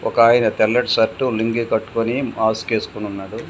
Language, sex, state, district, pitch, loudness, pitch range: Telugu, male, Telangana, Komaram Bheem, 110 Hz, -19 LUFS, 110-115 Hz